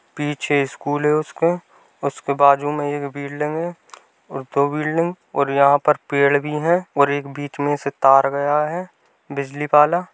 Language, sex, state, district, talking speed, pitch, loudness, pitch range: Hindi, male, Bihar, Bhagalpur, 170 wpm, 145 Hz, -19 LUFS, 140-150 Hz